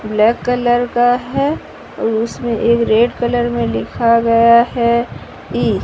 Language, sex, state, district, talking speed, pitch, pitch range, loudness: Hindi, female, Odisha, Sambalpur, 155 wpm, 235 Hz, 230-245 Hz, -15 LUFS